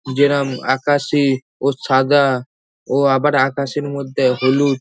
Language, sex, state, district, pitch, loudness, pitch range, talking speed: Bengali, male, West Bengal, North 24 Parganas, 135 Hz, -17 LUFS, 130-140 Hz, 110 wpm